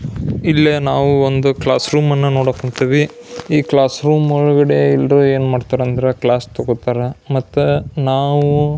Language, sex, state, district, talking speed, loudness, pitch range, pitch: Kannada, male, Karnataka, Belgaum, 130 wpm, -15 LUFS, 130-145 Hz, 140 Hz